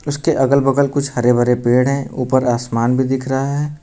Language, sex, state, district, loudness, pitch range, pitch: Hindi, male, Uttar Pradesh, Lucknow, -16 LUFS, 125-140 Hz, 130 Hz